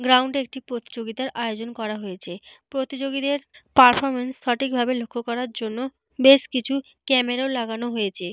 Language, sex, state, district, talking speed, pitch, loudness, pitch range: Bengali, female, Jharkhand, Jamtara, 135 wpm, 250 Hz, -23 LUFS, 230-270 Hz